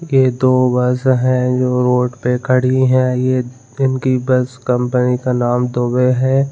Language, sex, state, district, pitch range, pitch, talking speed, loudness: Hindi, male, Chhattisgarh, Bilaspur, 125-130 Hz, 125 Hz, 165 wpm, -15 LUFS